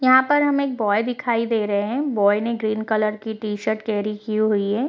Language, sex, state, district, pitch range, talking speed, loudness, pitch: Hindi, female, Bihar, East Champaran, 210-245 Hz, 235 wpm, -21 LUFS, 220 Hz